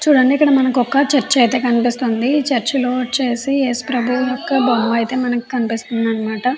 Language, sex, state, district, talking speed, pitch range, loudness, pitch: Telugu, female, Andhra Pradesh, Chittoor, 130 wpm, 240-270 Hz, -16 LUFS, 250 Hz